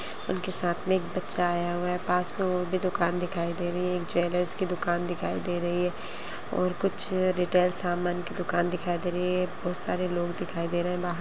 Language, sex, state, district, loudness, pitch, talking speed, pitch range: Hindi, female, Chhattisgarh, Sarguja, -27 LUFS, 180 Hz, 230 wpm, 175-180 Hz